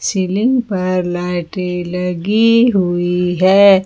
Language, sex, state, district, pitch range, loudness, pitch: Hindi, female, Jharkhand, Ranchi, 180-200 Hz, -15 LUFS, 185 Hz